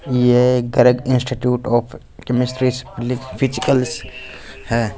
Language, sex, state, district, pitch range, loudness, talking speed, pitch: Hindi, male, Punjab, Fazilka, 120-130 Hz, -18 LUFS, 85 wpm, 125 Hz